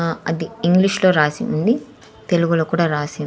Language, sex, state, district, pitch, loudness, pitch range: Telugu, female, Andhra Pradesh, Sri Satya Sai, 170 Hz, -18 LUFS, 160-185 Hz